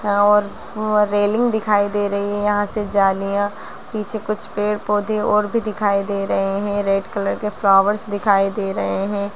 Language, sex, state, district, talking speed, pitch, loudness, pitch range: Hindi, female, Bihar, Gaya, 180 wpm, 205 Hz, -19 LUFS, 200-210 Hz